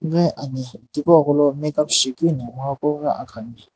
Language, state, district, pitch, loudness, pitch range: Sumi, Nagaland, Dimapur, 145 Hz, -20 LUFS, 130-150 Hz